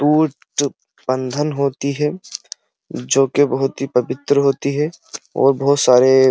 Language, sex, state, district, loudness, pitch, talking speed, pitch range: Hindi, male, Uttar Pradesh, Muzaffarnagar, -17 LUFS, 140 Hz, 125 wpm, 130-145 Hz